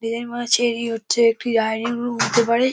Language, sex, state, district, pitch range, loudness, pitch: Bengali, male, West Bengal, Dakshin Dinajpur, 230-240 Hz, -20 LUFS, 235 Hz